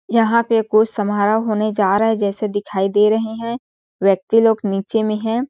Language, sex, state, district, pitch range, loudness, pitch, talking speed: Hindi, female, Chhattisgarh, Sarguja, 205-225 Hz, -17 LUFS, 215 Hz, 195 wpm